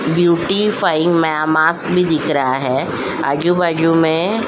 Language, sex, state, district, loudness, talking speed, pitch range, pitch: Hindi, female, Uttar Pradesh, Jyotiba Phule Nagar, -15 LUFS, 145 wpm, 155-175 Hz, 165 Hz